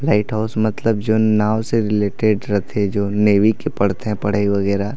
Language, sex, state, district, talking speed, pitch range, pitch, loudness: Chhattisgarhi, male, Chhattisgarh, Raigarh, 180 wpm, 100-110 Hz, 105 Hz, -18 LUFS